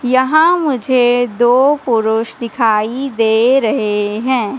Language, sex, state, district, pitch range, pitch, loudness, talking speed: Hindi, female, Madhya Pradesh, Katni, 225-260 Hz, 245 Hz, -14 LUFS, 105 wpm